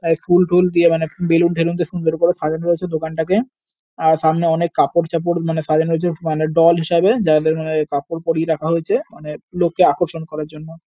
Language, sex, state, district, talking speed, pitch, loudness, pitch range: Bengali, male, West Bengal, North 24 Parganas, 185 wpm, 165 Hz, -17 LUFS, 160-170 Hz